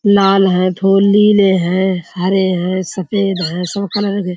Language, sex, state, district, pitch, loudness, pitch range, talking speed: Hindi, female, Uttar Pradesh, Budaun, 190 Hz, -14 LUFS, 185-200 Hz, 180 wpm